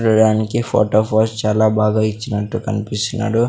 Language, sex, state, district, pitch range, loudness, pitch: Telugu, male, Andhra Pradesh, Sri Satya Sai, 105-115 Hz, -17 LUFS, 110 Hz